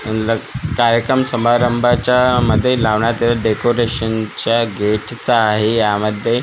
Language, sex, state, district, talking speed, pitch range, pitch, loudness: Marathi, male, Maharashtra, Gondia, 95 wpm, 110-120 Hz, 115 Hz, -16 LUFS